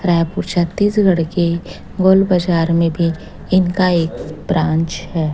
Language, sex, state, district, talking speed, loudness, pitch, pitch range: Hindi, female, Chhattisgarh, Raipur, 125 wpm, -16 LUFS, 175 Hz, 165-185 Hz